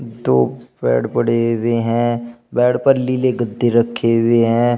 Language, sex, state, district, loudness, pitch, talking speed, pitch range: Hindi, male, Uttar Pradesh, Shamli, -17 LUFS, 120 Hz, 150 wpm, 115-120 Hz